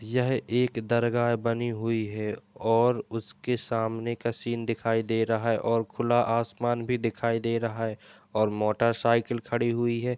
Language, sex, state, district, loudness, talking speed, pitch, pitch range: Hindi, male, Uttar Pradesh, Jalaun, -27 LUFS, 165 wpm, 115 Hz, 115-120 Hz